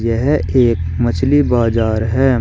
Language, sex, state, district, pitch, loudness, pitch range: Hindi, male, Uttar Pradesh, Shamli, 120 Hz, -15 LUFS, 115-130 Hz